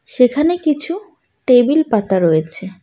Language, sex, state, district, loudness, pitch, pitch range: Bengali, female, West Bengal, Alipurduar, -15 LUFS, 250 Hz, 190-315 Hz